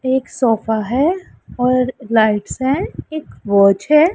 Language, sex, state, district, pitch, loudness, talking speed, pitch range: Hindi, female, Punjab, Pathankot, 255 Hz, -16 LUFS, 130 wpm, 220-275 Hz